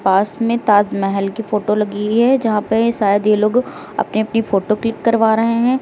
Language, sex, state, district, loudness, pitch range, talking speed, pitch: Hindi, female, Uttar Pradesh, Lucknow, -16 LUFS, 210-230 Hz, 215 wpm, 220 Hz